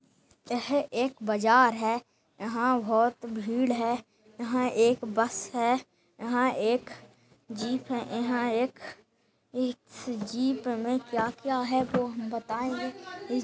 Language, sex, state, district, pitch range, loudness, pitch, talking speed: Hindi, female, Chhattisgarh, Jashpur, 230-255 Hz, -29 LUFS, 240 Hz, 115 wpm